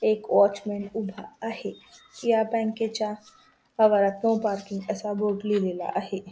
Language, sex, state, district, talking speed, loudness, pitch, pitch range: Marathi, female, Maharashtra, Solapur, 135 wpm, -26 LUFS, 215 Hz, 200-225 Hz